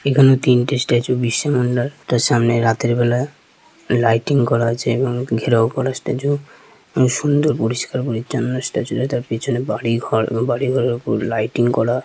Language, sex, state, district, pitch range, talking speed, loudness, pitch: Bengali, male, West Bengal, Purulia, 115-130 Hz, 165 wpm, -18 LUFS, 120 Hz